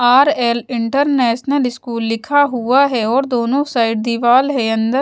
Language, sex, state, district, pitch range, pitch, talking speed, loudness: Hindi, female, Bihar, West Champaran, 235-275 Hz, 245 Hz, 155 wpm, -15 LUFS